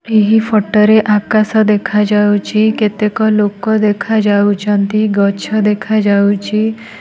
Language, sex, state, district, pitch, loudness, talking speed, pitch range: Odia, female, Odisha, Nuapada, 210 Hz, -12 LUFS, 105 wpm, 205-220 Hz